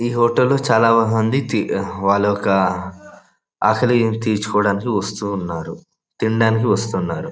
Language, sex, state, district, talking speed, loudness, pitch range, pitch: Telugu, male, Andhra Pradesh, Anantapur, 105 wpm, -18 LUFS, 100-115 Hz, 110 Hz